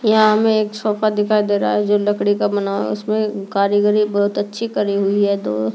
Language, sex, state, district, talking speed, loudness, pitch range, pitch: Hindi, female, Delhi, New Delhi, 220 wpm, -17 LUFS, 200-215 Hz, 205 Hz